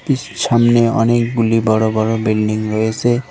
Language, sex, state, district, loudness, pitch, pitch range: Bengali, male, West Bengal, Cooch Behar, -15 LUFS, 115 Hz, 110-120 Hz